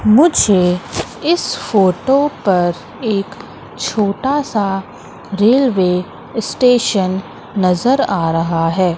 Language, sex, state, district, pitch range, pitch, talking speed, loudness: Hindi, female, Madhya Pradesh, Katni, 180-245 Hz, 200 Hz, 80 wpm, -15 LUFS